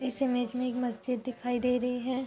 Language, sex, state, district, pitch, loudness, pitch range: Hindi, female, Uttar Pradesh, Muzaffarnagar, 250 Hz, -31 LUFS, 245-255 Hz